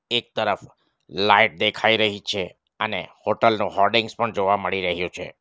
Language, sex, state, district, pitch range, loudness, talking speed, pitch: Gujarati, male, Gujarat, Valsad, 90-110 Hz, -21 LUFS, 165 wpm, 100 Hz